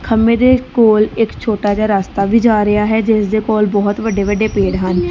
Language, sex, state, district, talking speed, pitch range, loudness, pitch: Punjabi, female, Punjab, Kapurthala, 210 wpm, 205-225 Hz, -14 LUFS, 215 Hz